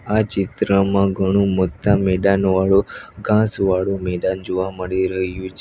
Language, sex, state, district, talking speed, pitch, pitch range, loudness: Gujarati, male, Gujarat, Valsad, 120 wpm, 95 Hz, 95-100 Hz, -19 LUFS